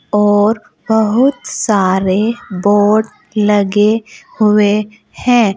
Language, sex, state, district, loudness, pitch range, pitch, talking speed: Hindi, female, Uttar Pradesh, Saharanpur, -13 LUFS, 205-220 Hz, 210 Hz, 75 wpm